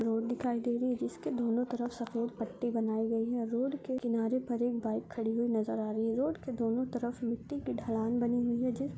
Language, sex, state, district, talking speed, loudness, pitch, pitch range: Hindi, female, Uttarakhand, Tehri Garhwal, 235 wpm, -34 LUFS, 240 Hz, 230-245 Hz